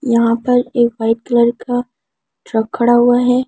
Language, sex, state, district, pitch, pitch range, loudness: Hindi, female, Delhi, New Delhi, 240 Hz, 235-245 Hz, -15 LUFS